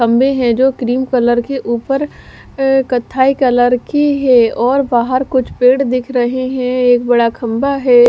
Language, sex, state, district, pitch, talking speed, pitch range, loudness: Hindi, female, Punjab, Fazilka, 255 Hz, 155 wpm, 240-265 Hz, -13 LUFS